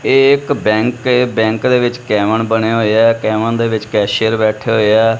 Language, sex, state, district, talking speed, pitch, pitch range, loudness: Punjabi, male, Punjab, Kapurthala, 205 wpm, 115 Hz, 110-120 Hz, -13 LUFS